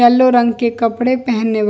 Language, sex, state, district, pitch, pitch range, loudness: Bhojpuri, female, Bihar, East Champaran, 240 Hz, 230-245 Hz, -14 LUFS